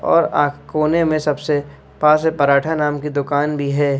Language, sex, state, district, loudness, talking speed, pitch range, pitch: Hindi, male, Madhya Pradesh, Bhopal, -18 LUFS, 195 wpm, 145-155 Hz, 150 Hz